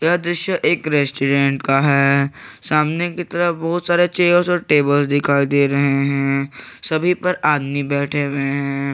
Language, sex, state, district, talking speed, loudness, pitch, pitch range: Hindi, male, Jharkhand, Garhwa, 160 wpm, -17 LUFS, 145 Hz, 140-175 Hz